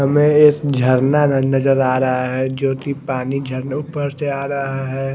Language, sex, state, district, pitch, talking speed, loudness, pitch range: Hindi, male, Odisha, Khordha, 135 Hz, 175 wpm, -17 LUFS, 130-140 Hz